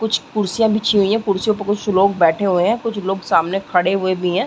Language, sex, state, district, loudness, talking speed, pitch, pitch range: Hindi, female, Uttar Pradesh, Muzaffarnagar, -17 LUFS, 255 wpm, 200 Hz, 185-215 Hz